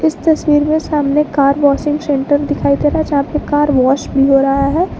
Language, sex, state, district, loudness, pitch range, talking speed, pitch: Hindi, female, Jharkhand, Garhwa, -13 LUFS, 280-300 Hz, 230 wpm, 290 Hz